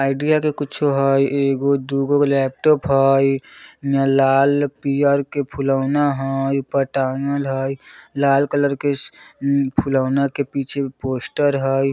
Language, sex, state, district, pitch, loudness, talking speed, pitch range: Bajjika, male, Bihar, Vaishali, 140 Hz, -19 LUFS, 135 wpm, 135-140 Hz